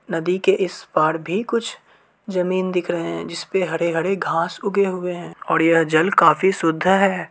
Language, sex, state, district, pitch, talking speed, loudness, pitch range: Hindi, male, Uttar Pradesh, Varanasi, 180 Hz, 190 wpm, -20 LUFS, 165-190 Hz